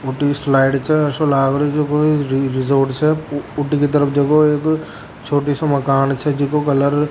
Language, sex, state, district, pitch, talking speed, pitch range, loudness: Rajasthani, male, Rajasthan, Churu, 145 Hz, 125 wpm, 140-150 Hz, -16 LUFS